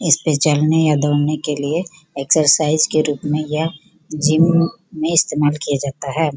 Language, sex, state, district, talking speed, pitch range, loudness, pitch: Hindi, female, Bihar, Gopalganj, 160 wpm, 150-160 Hz, -17 LUFS, 155 Hz